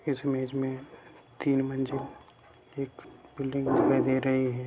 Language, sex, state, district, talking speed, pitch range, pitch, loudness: Hindi, male, Bihar, Sitamarhi, 140 wpm, 130-135 Hz, 135 Hz, -29 LUFS